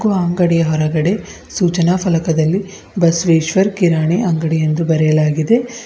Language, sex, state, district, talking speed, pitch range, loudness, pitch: Kannada, female, Karnataka, Bidar, 100 wpm, 160-190 Hz, -15 LUFS, 170 Hz